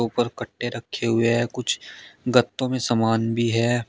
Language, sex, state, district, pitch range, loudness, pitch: Hindi, male, Uttar Pradesh, Shamli, 115-120 Hz, -23 LUFS, 120 Hz